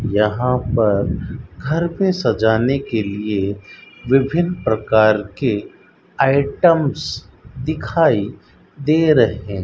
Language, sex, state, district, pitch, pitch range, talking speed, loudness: Hindi, male, Rajasthan, Bikaner, 120 Hz, 105-140 Hz, 95 wpm, -18 LUFS